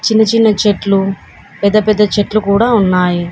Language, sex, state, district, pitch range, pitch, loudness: Telugu, female, Telangana, Komaram Bheem, 195-215 Hz, 205 Hz, -12 LUFS